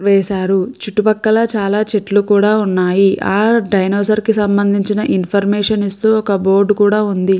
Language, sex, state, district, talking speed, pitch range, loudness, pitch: Telugu, female, Andhra Pradesh, Krishna, 130 wpm, 195-215 Hz, -14 LUFS, 205 Hz